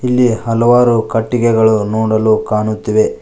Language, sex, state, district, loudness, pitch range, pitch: Kannada, male, Karnataka, Koppal, -13 LUFS, 110-120 Hz, 110 Hz